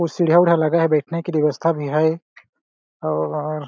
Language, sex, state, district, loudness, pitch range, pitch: Hindi, male, Chhattisgarh, Balrampur, -19 LUFS, 150-165 Hz, 160 Hz